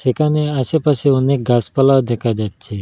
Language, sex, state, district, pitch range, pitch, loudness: Bengali, male, Assam, Hailakandi, 120-145 Hz, 130 Hz, -16 LUFS